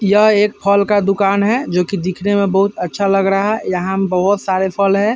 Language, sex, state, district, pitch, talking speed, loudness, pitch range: Hindi, male, Bihar, Vaishali, 200 Hz, 230 wpm, -15 LUFS, 190-205 Hz